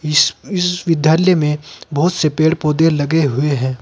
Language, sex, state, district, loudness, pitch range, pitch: Hindi, male, Uttar Pradesh, Saharanpur, -15 LUFS, 150-165 Hz, 155 Hz